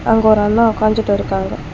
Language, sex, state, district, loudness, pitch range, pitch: Tamil, female, Tamil Nadu, Chennai, -15 LUFS, 205-225 Hz, 215 Hz